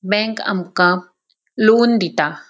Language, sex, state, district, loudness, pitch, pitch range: Konkani, female, Goa, North and South Goa, -16 LUFS, 190 Hz, 180-220 Hz